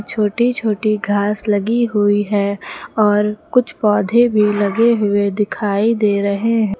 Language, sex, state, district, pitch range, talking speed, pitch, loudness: Hindi, male, Uttar Pradesh, Lucknow, 205-230 Hz, 140 wpm, 210 Hz, -16 LUFS